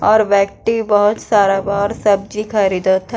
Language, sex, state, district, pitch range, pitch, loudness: Bhojpuri, female, Bihar, East Champaran, 200-215 Hz, 205 Hz, -15 LUFS